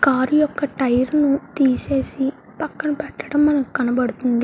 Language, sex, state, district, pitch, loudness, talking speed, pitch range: Telugu, female, Andhra Pradesh, Guntur, 275 Hz, -20 LUFS, 110 wpm, 255-290 Hz